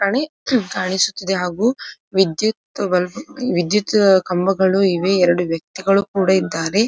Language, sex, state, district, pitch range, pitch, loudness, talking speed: Kannada, female, Karnataka, Dharwad, 180-210 Hz, 190 Hz, -18 LUFS, 105 wpm